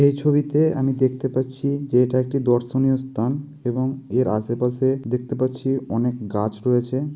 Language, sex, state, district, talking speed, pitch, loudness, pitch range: Bengali, male, West Bengal, Kolkata, 160 wpm, 130 Hz, -22 LUFS, 125-135 Hz